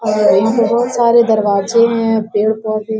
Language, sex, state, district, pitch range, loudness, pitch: Hindi, female, Bihar, Bhagalpur, 215-230 Hz, -13 LUFS, 220 Hz